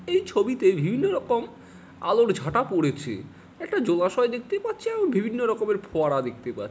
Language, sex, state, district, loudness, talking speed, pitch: Bengali, male, West Bengal, Jalpaiguri, -25 LUFS, 150 wpm, 245 Hz